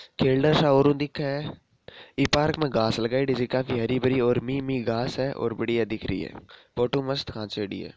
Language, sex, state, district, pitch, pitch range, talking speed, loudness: Marwari, male, Rajasthan, Nagaur, 130 Hz, 115-140 Hz, 220 wpm, -25 LUFS